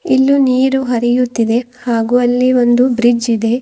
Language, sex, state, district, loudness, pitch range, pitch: Kannada, female, Karnataka, Bidar, -13 LUFS, 240-255 Hz, 245 Hz